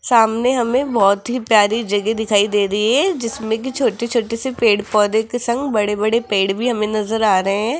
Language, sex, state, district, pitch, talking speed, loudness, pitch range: Hindi, female, Rajasthan, Jaipur, 220 Hz, 215 wpm, -17 LUFS, 210-235 Hz